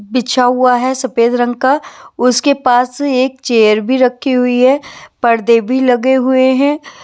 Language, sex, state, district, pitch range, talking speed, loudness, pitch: Hindi, female, Maharashtra, Washim, 245-265 Hz, 170 wpm, -12 LUFS, 255 Hz